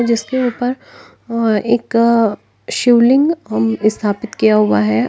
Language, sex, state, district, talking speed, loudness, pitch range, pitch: Hindi, female, Uttar Pradesh, Lalitpur, 95 wpm, -15 LUFS, 205-240 Hz, 230 Hz